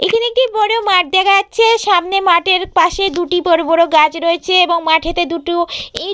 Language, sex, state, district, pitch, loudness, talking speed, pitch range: Bengali, female, West Bengal, Purulia, 360 Hz, -13 LUFS, 175 wpm, 340-395 Hz